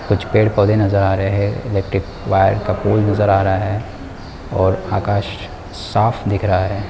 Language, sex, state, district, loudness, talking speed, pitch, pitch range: Hindi, male, Chhattisgarh, Rajnandgaon, -17 LUFS, 175 wpm, 100 Hz, 95-105 Hz